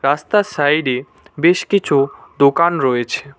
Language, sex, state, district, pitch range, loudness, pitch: Bengali, male, West Bengal, Cooch Behar, 140-170 Hz, -16 LUFS, 145 Hz